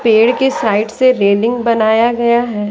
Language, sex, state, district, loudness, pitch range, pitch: Hindi, female, Bihar, Patna, -13 LUFS, 220-240 Hz, 230 Hz